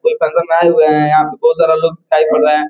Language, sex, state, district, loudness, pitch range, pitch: Hindi, male, Bihar, Gopalganj, -12 LUFS, 155-170 Hz, 160 Hz